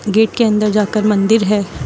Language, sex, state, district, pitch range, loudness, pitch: Hindi, female, Uttar Pradesh, Lucknow, 205-220 Hz, -14 LUFS, 210 Hz